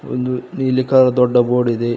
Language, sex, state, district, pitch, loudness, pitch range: Kannada, male, Karnataka, Koppal, 125 Hz, -16 LUFS, 125-130 Hz